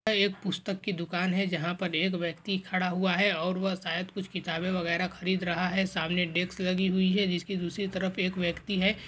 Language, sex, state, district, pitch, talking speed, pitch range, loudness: Hindi, male, Bihar, Lakhisarai, 185 Hz, 220 wpm, 175-190 Hz, -29 LUFS